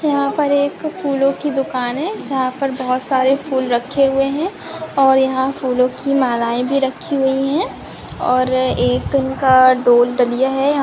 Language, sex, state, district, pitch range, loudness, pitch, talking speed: Hindi, female, Bihar, Gopalganj, 255-280 Hz, -17 LUFS, 270 Hz, 165 wpm